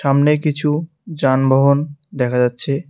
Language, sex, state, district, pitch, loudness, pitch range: Bengali, male, West Bengal, Cooch Behar, 145 Hz, -17 LUFS, 135-150 Hz